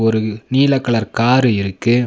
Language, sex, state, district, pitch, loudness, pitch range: Tamil, male, Tamil Nadu, Nilgiris, 115 Hz, -16 LUFS, 110-130 Hz